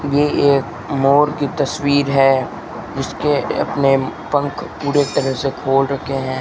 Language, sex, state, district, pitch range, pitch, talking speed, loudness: Hindi, male, Rajasthan, Bikaner, 135-145 Hz, 140 Hz, 140 wpm, -17 LUFS